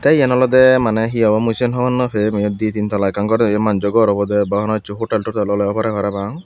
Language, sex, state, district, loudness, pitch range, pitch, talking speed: Chakma, male, Tripura, Dhalai, -16 LUFS, 100-115 Hz, 110 Hz, 270 wpm